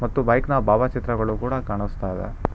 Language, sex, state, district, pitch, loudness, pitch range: Kannada, male, Karnataka, Bangalore, 115 Hz, -23 LUFS, 100-125 Hz